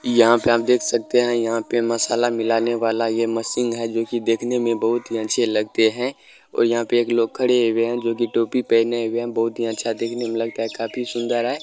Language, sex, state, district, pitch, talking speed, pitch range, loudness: Hindi, male, Bihar, Araria, 115 Hz, 240 wpm, 115-120 Hz, -21 LUFS